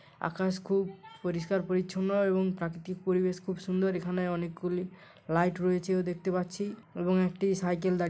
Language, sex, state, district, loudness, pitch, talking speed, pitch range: Bengali, male, West Bengal, Paschim Medinipur, -31 LUFS, 185 Hz, 150 wpm, 180-190 Hz